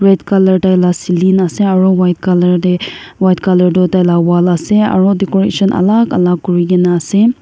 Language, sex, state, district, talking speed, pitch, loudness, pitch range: Nagamese, female, Nagaland, Kohima, 180 wpm, 185 Hz, -11 LUFS, 180-195 Hz